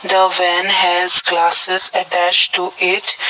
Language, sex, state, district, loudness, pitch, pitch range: English, male, Assam, Kamrup Metropolitan, -13 LUFS, 180 Hz, 175-185 Hz